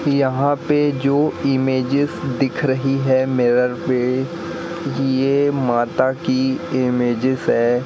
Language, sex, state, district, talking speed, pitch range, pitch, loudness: Hindi, male, Madhya Pradesh, Katni, 105 wpm, 130-140 Hz, 130 Hz, -19 LUFS